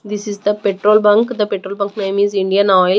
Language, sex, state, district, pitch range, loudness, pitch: English, female, Haryana, Rohtak, 195-210 Hz, -15 LUFS, 200 Hz